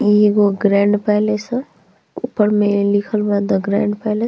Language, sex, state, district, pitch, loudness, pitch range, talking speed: Bhojpuri, female, Uttar Pradesh, Ghazipur, 210 Hz, -16 LUFS, 205-215 Hz, 180 wpm